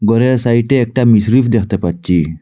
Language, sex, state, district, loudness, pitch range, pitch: Bengali, male, Assam, Hailakandi, -13 LUFS, 95-125 Hz, 115 Hz